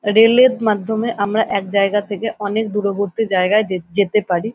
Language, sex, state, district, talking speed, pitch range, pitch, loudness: Bengali, female, West Bengal, North 24 Parganas, 170 wpm, 200-220 Hz, 205 Hz, -17 LUFS